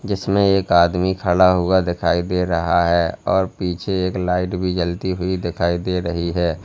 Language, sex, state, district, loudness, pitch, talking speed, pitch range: Hindi, male, Uttar Pradesh, Lalitpur, -19 LUFS, 90 Hz, 180 wpm, 85-95 Hz